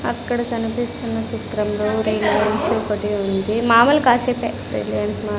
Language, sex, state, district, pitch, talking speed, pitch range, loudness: Telugu, female, Andhra Pradesh, Sri Satya Sai, 215 Hz, 110 wpm, 205-235 Hz, -19 LUFS